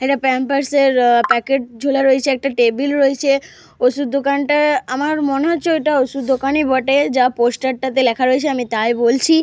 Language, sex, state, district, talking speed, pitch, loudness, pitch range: Bengali, female, Jharkhand, Jamtara, 165 wpm, 270 Hz, -16 LUFS, 255-280 Hz